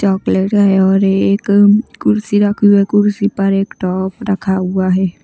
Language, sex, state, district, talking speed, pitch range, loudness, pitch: Hindi, female, Maharashtra, Mumbai Suburban, 170 wpm, 190-205 Hz, -13 LUFS, 195 Hz